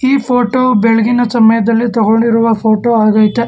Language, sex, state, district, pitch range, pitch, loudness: Kannada, male, Karnataka, Bangalore, 225-240 Hz, 230 Hz, -11 LUFS